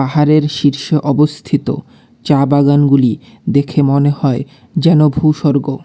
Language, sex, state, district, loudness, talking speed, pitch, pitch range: Bengali, male, West Bengal, Alipurduar, -13 LUFS, 105 wpm, 145 Hz, 140-150 Hz